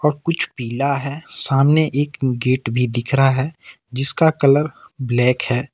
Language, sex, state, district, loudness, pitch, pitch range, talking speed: Hindi, male, Jharkhand, Ranchi, -18 LUFS, 135 Hz, 125-145 Hz, 145 wpm